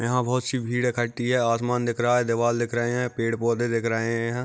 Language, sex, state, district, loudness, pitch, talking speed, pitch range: Hindi, male, Maharashtra, Aurangabad, -24 LUFS, 120 Hz, 240 wpm, 115-125 Hz